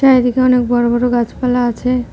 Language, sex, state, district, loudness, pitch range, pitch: Bengali, female, West Bengal, Cooch Behar, -14 LUFS, 240-250 Hz, 245 Hz